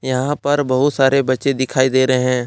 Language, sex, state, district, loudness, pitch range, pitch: Hindi, male, Jharkhand, Deoghar, -16 LUFS, 130-140 Hz, 130 Hz